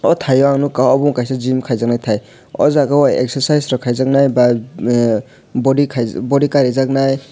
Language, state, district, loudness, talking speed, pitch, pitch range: Kokborok, Tripura, West Tripura, -15 LUFS, 190 wpm, 130 Hz, 125-140 Hz